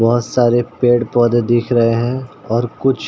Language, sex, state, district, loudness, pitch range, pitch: Hindi, male, Uttar Pradesh, Ghazipur, -15 LUFS, 115-120 Hz, 120 Hz